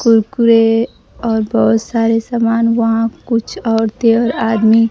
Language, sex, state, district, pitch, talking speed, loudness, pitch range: Hindi, female, Bihar, Kaimur, 225 Hz, 120 wpm, -14 LUFS, 225-230 Hz